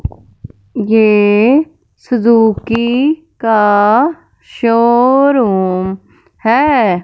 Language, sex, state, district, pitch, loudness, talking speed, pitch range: Hindi, female, Punjab, Fazilka, 225 Hz, -12 LUFS, 45 wpm, 205-245 Hz